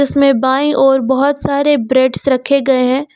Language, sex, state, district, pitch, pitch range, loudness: Hindi, female, Uttar Pradesh, Lucknow, 270 Hz, 260-280 Hz, -13 LUFS